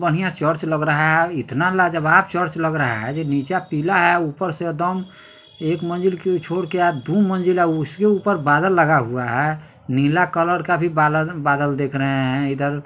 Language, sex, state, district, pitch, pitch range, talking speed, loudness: Hindi, male, Bihar, Sitamarhi, 165 Hz, 145-180 Hz, 200 wpm, -19 LUFS